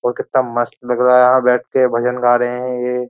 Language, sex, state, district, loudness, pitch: Hindi, male, Uttar Pradesh, Jyotiba Phule Nagar, -15 LUFS, 125 Hz